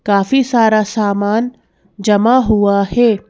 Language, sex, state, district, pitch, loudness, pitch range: Hindi, female, Madhya Pradesh, Bhopal, 215 Hz, -13 LUFS, 200-235 Hz